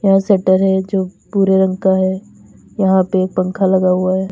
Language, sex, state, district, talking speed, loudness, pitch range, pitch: Hindi, female, Uttar Pradesh, Lalitpur, 210 wpm, -15 LUFS, 185-190 Hz, 190 Hz